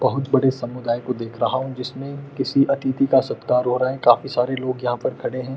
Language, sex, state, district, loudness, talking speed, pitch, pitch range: Hindi, male, Uttar Pradesh, Muzaffarnagar, -21 LUFS, 235 wpm, 130 Hz, 125-135 Hz